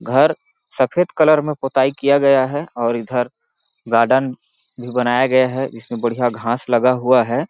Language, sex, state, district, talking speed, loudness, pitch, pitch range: Hindi, male, Chhattisgarh, Balrampur, 170 wpm, -17 LUFS, 125 Hz, 120-135 Hz